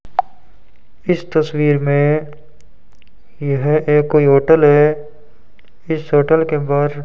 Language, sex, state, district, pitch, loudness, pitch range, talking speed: Hindi, male, Rajasthan, Bikaner, 150 Hz, -15 LUFS, 145-155 Hz, 110 wpm